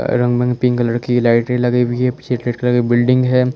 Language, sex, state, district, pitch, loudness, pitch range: Hindi, male, Chandigarh, Chandigarh, 125 Hz, -16 LUFS, 120-125 Hz